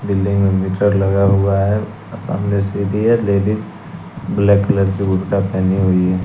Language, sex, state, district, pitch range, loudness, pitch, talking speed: Hindi, male, Bihar, West Champaran, 95-100 Hz, -16 LUFS, 100 Hz, 155 wpm